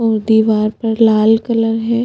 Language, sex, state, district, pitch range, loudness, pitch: Hindi, female, Chhattisgarh, Bastar, 220-225 Hz, -13 LUFS, 225 Hz